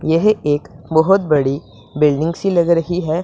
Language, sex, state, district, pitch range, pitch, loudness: Hindi, female, Punjab, Pathankot, 145-175 Hz, 160 Hz, -16 LUFS